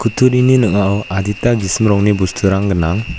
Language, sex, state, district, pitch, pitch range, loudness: Garo, male, Meghalaya, West Garo Hills, 100 Hz, 95-115 Hz, -14 LUFS